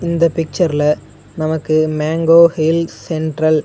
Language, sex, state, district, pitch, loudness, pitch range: Tamil, male, Tamil Nadu, Nilgiris, 160 Hz, -15 LUFS, 155-165 Hz